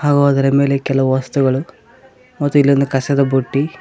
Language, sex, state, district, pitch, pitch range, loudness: Kannada, male, Karnataka, Koppal, 140 Hz, 135-140 Hz, -15 LUFS